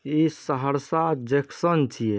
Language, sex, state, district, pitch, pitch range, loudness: Hindi, male, Bihar, Saharsa, 150 Hz, 140-160 Hz, -24 LUFS